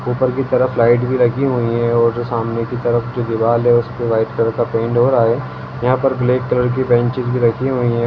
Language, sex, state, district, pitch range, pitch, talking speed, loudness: Hindi, male, Bihar, Gaya, 115-125 Hz, 120 Hz, 240 wpm, -16 LUFS